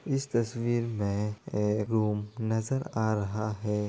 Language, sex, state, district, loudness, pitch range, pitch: Hindi, female, Bihar, Darbhanga, -30 LUFS, 105-115 Hz, 110 Hz